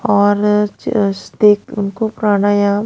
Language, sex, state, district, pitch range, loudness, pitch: Hindi, female, Punjab, Pathankot, 205-210 Hz, -15 LUFS, 205 Hz